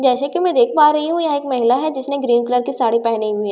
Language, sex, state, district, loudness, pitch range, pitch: Hindi, female, Bihar, Katihar, -17 LUFS, 240-300 Hz, 265 Hz